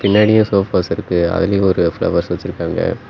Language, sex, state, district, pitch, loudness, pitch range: Tamil, male, Tamil Nadu, Namakkal, 100 Hz, -16 LUFS, 90-100 Hz